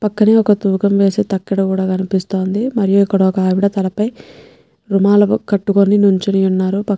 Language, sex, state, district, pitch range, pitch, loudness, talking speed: Telugu, female, Telangana, Nalgonda, 190-205 Hz, 200 Hz, -14 LUFS, 140 wpm